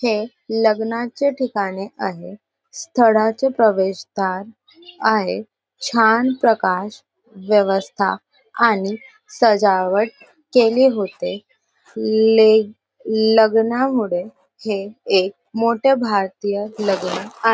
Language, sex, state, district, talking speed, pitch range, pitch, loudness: Marathi, female, Maharashtra, Sindhudurg, 80 wpm, 200-235 Hz, 220 Hz, -18 LUFS